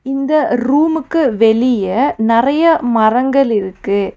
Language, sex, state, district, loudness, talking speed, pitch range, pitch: Tamil, female, Tamil Nadu, Nilgiris, -13 LUFS, 85 wpm, 225-285 Hz, 250 Hz